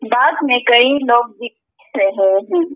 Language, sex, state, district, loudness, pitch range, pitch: Hindi, female, Arunachal Pradesh, Lower Dibang Valley, -14 LUFS, 240-290 Hz, 240 Hz